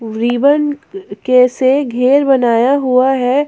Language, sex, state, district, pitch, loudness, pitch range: Hindi, female, Jharkhand, Ranchi, 260 Hz, -12 LUFS, 245-280 Hz